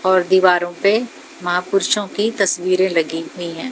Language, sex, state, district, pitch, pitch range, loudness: Hindi, female, Haryana, Jhajjar, 185 Hz, 175-200 Hz, -18 LUFS